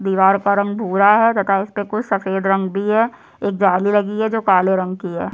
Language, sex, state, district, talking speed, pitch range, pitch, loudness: Hindi, male, Chhattisgarh, Sukma, 235 wpm, 190-210 Hz, 200 Hz, -17 LUFS